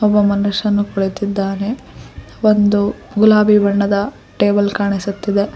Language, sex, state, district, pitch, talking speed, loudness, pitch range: Kannada, female, Karnataka, Koppal, 205 Hz, 85 wpm, -16 LUFS, 200-210 Hz